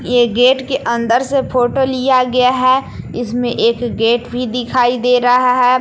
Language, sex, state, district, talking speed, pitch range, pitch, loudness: Hindi, female, Jharkhand, Palamu, 175 wpm, 240-255 Hz, 250 Hz, -14 LUFS